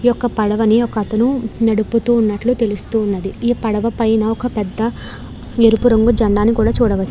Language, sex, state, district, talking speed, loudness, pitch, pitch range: Telugu, female, Andhra Pradesh, Krishna, 125 wpm, -16 LUFS, 225 Hz, 215-235 Hz